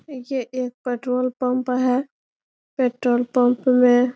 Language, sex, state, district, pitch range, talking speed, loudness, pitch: Hindi, female, Bihar, Bhagalpur, 245-255 Hz, 130 wpm, -21 LUFS, 250 Hz